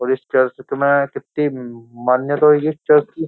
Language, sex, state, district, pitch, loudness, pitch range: Hindi, male, Uttar Pradesh, Jyotiba Phule Nagar, 140 Hz, -17 LUFS, 125-150 Hz